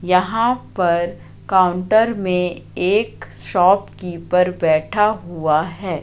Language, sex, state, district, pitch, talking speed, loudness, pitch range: Hindi, female, Madhya Pradesh, Katni, 180 Hz, 90 wpm, -18 LUFS, 175-200 Hz